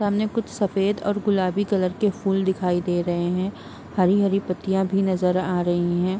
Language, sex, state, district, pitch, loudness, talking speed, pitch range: Hindi, female, Bihar, Gopalganj, 190 Hz, -23 LUFS, 175 wpm, 180-200 Hz